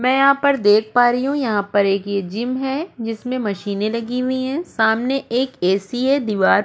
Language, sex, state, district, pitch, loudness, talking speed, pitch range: Hindi, female, Goa, North and South Goa, 245 Hz, -19 LUFS, 215 wpm, 205-265 Hz